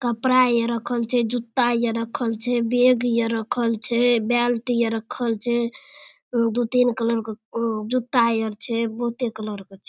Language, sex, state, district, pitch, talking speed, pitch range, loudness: Maithili, female, Bihar, Darbhanga, 235 Hz, 160 wpm, 230-245 Hz, -22 LUFS